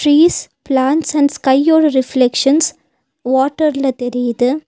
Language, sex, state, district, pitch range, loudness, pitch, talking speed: Tamil, female, Tamil Nadu, Nilgiris, 260-305 Hz, -14 LUFS, 275 Hz, 90 wpm